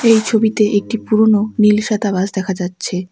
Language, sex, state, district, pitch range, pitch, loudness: Bengali, female, West Bengal, Alipurduar, 190-220 Hz, 210 Hz, -15 LUFS